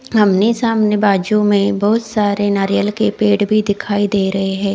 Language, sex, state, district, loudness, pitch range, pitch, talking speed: Hindi, female, Odisha, Khordha, -15 LUFS, 200-215 Hz, 205 Hz, 175 wpm